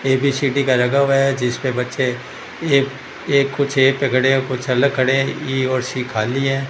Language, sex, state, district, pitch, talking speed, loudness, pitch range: Hindi, male, Rajasthan, Bikaner, 135 Hz, 170 wpm, -18 LUFS, 130-140 Hz